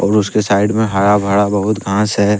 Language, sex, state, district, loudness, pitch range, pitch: Hindi, male, Jharkhand, Deoghar, -14 LUFS, 100-105 Hz, 105 Hz